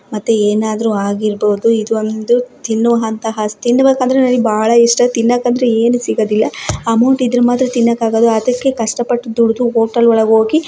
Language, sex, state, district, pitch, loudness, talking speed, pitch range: Kannada, female, Karnataka, Dakshina Kannada, 230 Hz, -13 LUFS, 145 wpm, 220-245 Hz